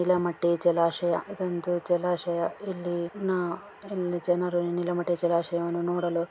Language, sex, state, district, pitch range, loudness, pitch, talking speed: Kannada, female, Karnataka, Dharwad, 170-180 Hz, -28 LUFS, 175 Hz, 105 wpm